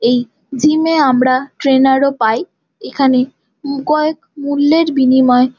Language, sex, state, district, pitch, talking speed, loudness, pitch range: Bengali, female, West Bengal, Jalpaiguri, 270 Hz, 105 wpm, -13 LUFS, 250-290 Hz